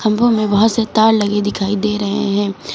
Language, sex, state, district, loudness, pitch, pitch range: Hindi, female, Uttar Pradesh, Lucknow, -15 LUFS, 210 Hz, 205-220 Hz